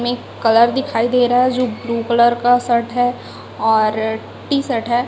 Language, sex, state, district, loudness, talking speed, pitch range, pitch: Hindi, female, Chhattisgarh, Raipur, -16 LUFS, 180 wpm, 230-245 Hz, 240 Hz